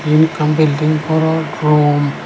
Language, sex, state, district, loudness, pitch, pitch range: Chakma, male, Tripura, Dhalai, -14 LUFS, 155 Hz, 150-160 Hz